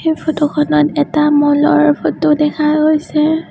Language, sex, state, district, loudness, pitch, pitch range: Assamese, female, Assam, Sonitpur, -13 LUFS, 300 Hz, 295-310 Hz